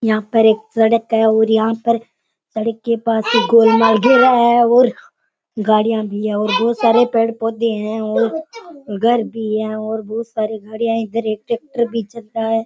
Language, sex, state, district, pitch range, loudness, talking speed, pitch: Rajasthani, male, Rajasthan, Churu, 220-235 Hz, -16 LUFS, 195 wpm, 225 Hz